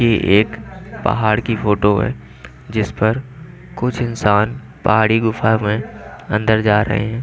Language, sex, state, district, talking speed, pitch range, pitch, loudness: Hindi, male, Chandigarh, Chandigarh, 135 wpm, 105-115 Hz, 110 Hz, -17 LUFS